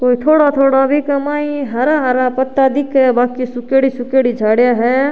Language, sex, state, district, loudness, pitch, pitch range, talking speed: Rajasthani, female, Rajasthan, Churu, -14 LUFS, 265 Hz, 250-280 Hz, 185 wpm